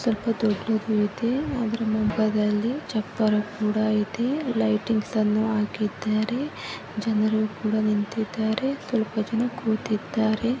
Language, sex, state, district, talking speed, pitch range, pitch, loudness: Kannada, female, Karnataka, Mysore, 90 wpm, 215-230 Hz, 220 Hz, -25 LUFS